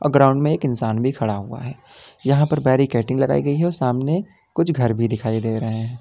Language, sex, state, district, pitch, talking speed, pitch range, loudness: Hindi, male, Uttar Pradesh, Lalitpur, 130 Hz, 220 wpm, 115-145 Hz, -20 LUFS